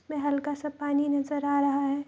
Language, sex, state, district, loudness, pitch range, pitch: Hindi, female, Bihar, Saharsa, -28 LUFS, 285-290 Hz, 285 Hz